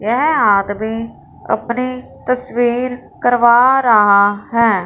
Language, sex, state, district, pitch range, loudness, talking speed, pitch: Hindi, female, Punjab, Fazilka, 210-250 Hz, -14 LUFS, 85 wpm, 235 Hz